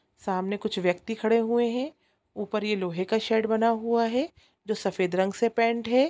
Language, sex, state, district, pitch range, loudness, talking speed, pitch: Hindi, female, Chhattisgarh, Raigarh, 200-230 Hz, -27 LUFS, 195 wpm, 220 Hz